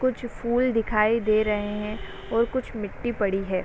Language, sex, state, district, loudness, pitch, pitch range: Hindi, female, Uttar Pradesh, Varanasi, -25 LUFS, 220 Hz, 210-240 Hz